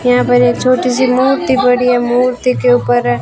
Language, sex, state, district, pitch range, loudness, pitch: Hindi, female, Rajasthan, Bikaner, 240-255 Hz, -12 LUFS, 245 Hz